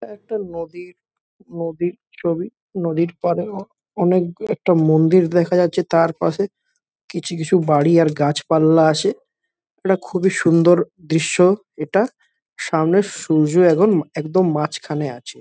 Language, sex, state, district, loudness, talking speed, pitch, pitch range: Bengali, male, West Bengal, Kolkata, -18 LUFS, 115 wpm, 175 Hz, 160-190 Hz